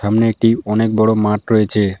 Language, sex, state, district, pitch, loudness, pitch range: Bengali, male, West Bengal, Alipurduar, 110 Hz, -15 LUFS, 105-110 Hz